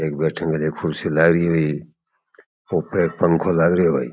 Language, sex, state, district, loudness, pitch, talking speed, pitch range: Marwari, male, Rajasthan, Churu, -19 LUFS, 80 Hz, 235 wpm, 75-80 Hz